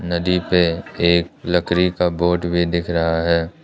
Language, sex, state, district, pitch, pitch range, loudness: Hindi, male, Arunachal Pradesh, Lower Dibang Valley, 85 Hz, 85-90 Hz, -19 LUFS